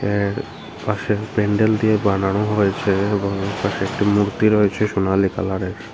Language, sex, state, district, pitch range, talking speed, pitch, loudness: Bengali, male, Tripura, Unakoti, 95-105 Hz, 140 wpm, 100 Hz, -19 LUFS